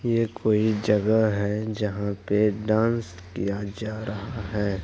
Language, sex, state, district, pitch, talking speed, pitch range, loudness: Hindi, male, Bihar, Madhepura, 105 Hz, 135 wpm, 100-110 Hz, -25 LUFS